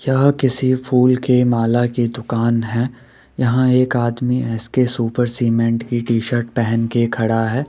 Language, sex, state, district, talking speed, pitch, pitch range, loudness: Hindi, male, Rajasthan, Jaipur, 170 wpm, 120 Hz, 115-125 Hz, -17 LUFS